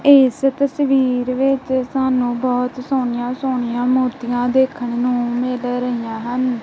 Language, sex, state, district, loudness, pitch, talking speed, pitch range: Punjabi, female, Punjab, Kapurthala, -18 LUFS, 250 Hz, 120 wpm, 245-265 Hz